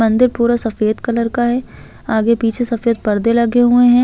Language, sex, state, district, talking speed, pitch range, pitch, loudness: Hindi, female, Chhattisgarh, Bastar, 195 wpm, 225-240 Hz, 235 Hz, -15 LUFS